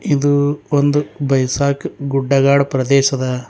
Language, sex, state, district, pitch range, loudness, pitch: Kannada, male, Karnataka, Bidar, 135-145 Hz, -16 LUFS, 140 Hz